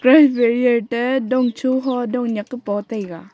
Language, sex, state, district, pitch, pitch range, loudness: Wancho, female, Arunachal Pradesh, Longding, 245 Hz, 225-255 Hz, -18 LUFS